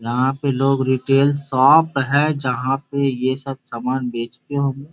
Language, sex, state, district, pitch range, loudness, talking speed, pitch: Hindi, male, Bihar, Gopalganj, 130-140 Hz, -19 LUFS, 160 wpm, 135 Hz